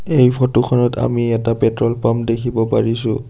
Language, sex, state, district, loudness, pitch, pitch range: Assamese, male, Assam, Sonitpur, -17 LUFS, 120 Hz, 115-125 Hz